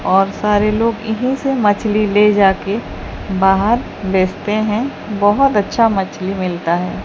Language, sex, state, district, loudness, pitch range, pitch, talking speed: Hindi, female, Odisha, Sambalpur, -16 LUFS, 195-220 Hz, 205 Hz, 135 wpm